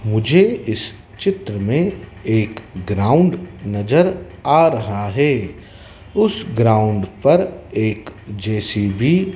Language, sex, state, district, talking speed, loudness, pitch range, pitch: Hindi, male, Madhya Pradesh, Dhar, 95 wpm, -18 LUFS, 105-160 Hz, 110 Hz